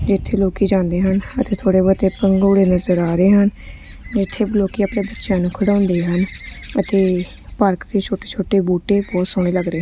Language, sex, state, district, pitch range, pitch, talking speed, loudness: Punjabi, female, Punjab, Kapurthala, 185-200 Hz, 195 Hz, 175 wpm, -17 LUFS